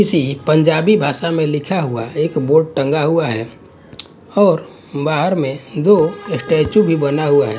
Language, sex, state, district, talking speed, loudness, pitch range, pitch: Hindi, male, Punjab, Fazilka, 150 wpm, -16 LUFS, 140-165 Hz, 155 Hz